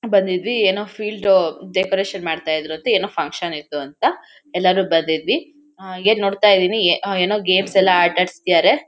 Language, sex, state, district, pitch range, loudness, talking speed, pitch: Kannada, female, Karnataka, Shimoga, 175-205 Hz, -18 LUFS, 150 wpm, 190 Hz